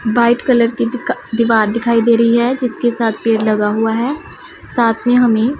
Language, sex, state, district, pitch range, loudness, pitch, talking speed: Hindi, female, Punjab, Pathankot, 225-240 Hz, -14 LUFS, 235 Hz, 205 wpm